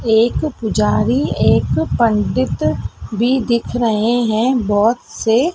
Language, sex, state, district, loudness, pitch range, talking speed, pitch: Hindi, female, Madhya Pradesh, Dhar, -16 LUFS, 210-240 Hz, 110 wpm, 225 Hz